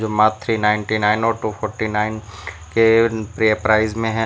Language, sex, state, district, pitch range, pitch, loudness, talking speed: Hindi, male, Uttar Pradesh, Lucknow, 105-110 Hz, 110 Hz, -18 LUFS, 170 wpm